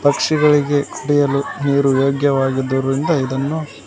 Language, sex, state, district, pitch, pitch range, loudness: Kannada, male, Karnataka, Koppal, 140 Hz, 135-145 Hz, -17 LUFS